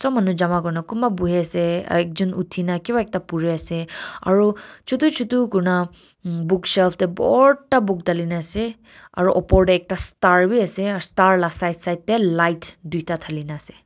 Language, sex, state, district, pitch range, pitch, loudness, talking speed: Nagamese, female, Nagaland, Kohima, 170-205 Hz, 185 Hz, -20 LUFS, 180 wpm